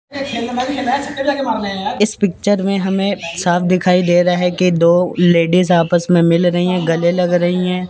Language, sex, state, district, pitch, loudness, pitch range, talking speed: Hindi, male, Chandigarh, Chandigarh, 180 Hz, -15 LUFS, 175-205 Hz, 160 wpm